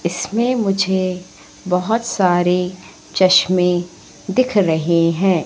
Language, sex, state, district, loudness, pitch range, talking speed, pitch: Hindi, female, Madhya Pradesh, Katni, -17 LUFS, 180-195 Hz, 90 wpm, 185 Hz